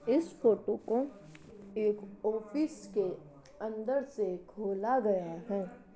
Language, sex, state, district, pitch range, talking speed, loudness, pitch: Hindi, female, Uttar Pradesh, Jalaun, 195-225 Hz, 110 wpm, -34 LUFS, 210 Hz